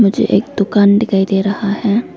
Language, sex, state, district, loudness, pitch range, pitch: Hindi, female, Arunachal Pradesh, Lower Dibang Valley, -14 LUFS, 200-215 Hz, 205 Hz